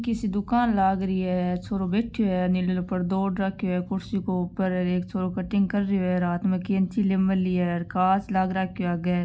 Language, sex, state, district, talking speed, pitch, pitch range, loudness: Marwari, female, Rajasthan, Nagaur, 235 wpm, 190 Hz, 180-200 Hz, -25 LUFS